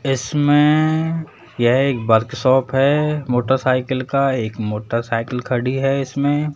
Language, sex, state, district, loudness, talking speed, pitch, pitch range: Hindi, male, Rajasthan, Jaipur, -18 LUFS, 120 wpm, 130 Hz, 125-145 Hz